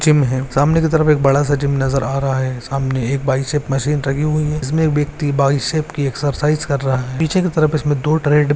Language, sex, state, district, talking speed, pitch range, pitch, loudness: Hindi, male, Maharashtra, Pune, 245 wpm, 135-150 Hz, 145 Hz, -17 LUFS